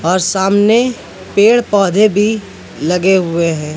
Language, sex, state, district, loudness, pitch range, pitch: Hindi, male, Madhya Pradesh, Katni, -13 LUFS, 175-215 Hz, 195 Hz